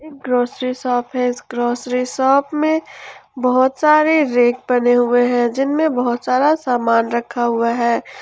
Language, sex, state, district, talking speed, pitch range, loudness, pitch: Hindi, female, Jharkhand, Ranchi, 145 wpm, 240-270 Hz, -17 LUFS, 250 Hz